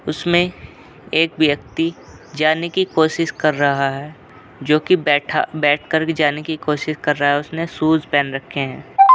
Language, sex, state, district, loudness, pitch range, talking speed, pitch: Hindi, male, Uttar Pradesh, Jalaun, -18 LUFS, 145-160 Hz, 170 wpm, 155 Hz